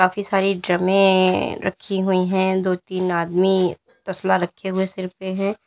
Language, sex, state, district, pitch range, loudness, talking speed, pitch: Hindi, female, Uttar Pradesh, Lalitpur, 185-195 Hz, -20 LUFS, 160 wpm, 190 Hz